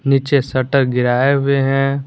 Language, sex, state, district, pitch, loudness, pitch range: Hindi, male, Jharkhand, Garhwa, 135 Hz, -15 LUFS, 130-140 Hz